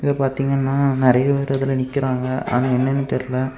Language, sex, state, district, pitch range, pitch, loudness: Tamil, male, Tamil Nadu, Kanyakumari, 130-135 Hz, 135 Hz, -19 LUFS